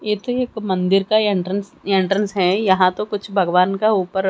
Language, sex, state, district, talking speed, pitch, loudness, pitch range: Hindi, female, Haryana, Charkhi Dadri, 195 wpm, 195 Hz, -18 LUFS, 190-210 Hz